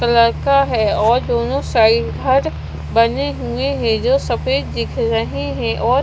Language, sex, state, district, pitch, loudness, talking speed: Hindi, female, Punjab, Kapurthala, 220 Hz, -17 LUFS, 150 wpm